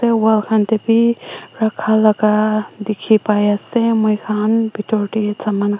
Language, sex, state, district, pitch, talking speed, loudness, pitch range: Nagamese, female, Nagaland, Dimapur, 215 Hz, 145 wpm, -16 LUFS, 210-220 Hz